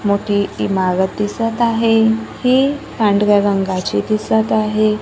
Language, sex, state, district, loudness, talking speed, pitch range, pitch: Marathi, female, Maharashtra, Gondia, -16 LUFS, 110 wpm, 200-225 Hz, 215 Hz